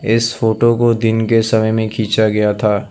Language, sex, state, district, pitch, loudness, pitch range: Hindi, male, Assam, Sonitpur, 110 Hz, -15 LUFS, 110-115 Hz